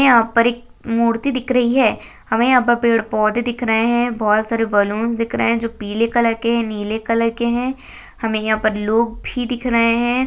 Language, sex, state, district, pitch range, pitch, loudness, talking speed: Hindi, female, Chhattisgarh, Jashpur, 225-240 Hz, 230 Hz, -18 LUFS, 220 wpm